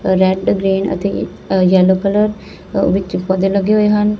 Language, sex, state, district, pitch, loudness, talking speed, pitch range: Punjabi, female, Punjab, Fazilka, 195 Hz, -15 LUFS, 145 wpm, 190-210 Hz